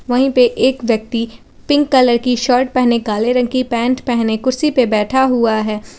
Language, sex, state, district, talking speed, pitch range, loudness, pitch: Hindi, female, Jharkhand, Garhwa, 190 wpm, 230-255 Hz, -15 LUFS, 245 Hz